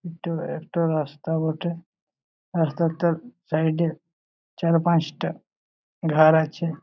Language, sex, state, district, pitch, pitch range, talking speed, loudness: Bengali, male, West Bengal, Malda, 165 Hz, 160-170 Hz, 95 wpm, -24 LUFS